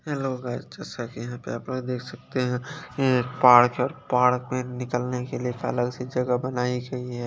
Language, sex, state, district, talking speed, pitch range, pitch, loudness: Hindi, male, Chandigarh, Chandigarh, 200 wpm, 125-130 Hz, 125 Hz, -25 LUFS